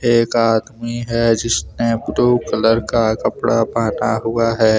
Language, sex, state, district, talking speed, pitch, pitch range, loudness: Hindi, male, Jharkhand, Deoghar, 140 wpm, 115 Hz, 110-115 Hz, -17 LUFS